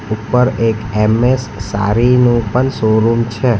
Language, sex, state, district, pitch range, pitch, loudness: Gujarati, male, Gujarat, Valsad, 110-125 Hz, 115 Hz, -14 LUFS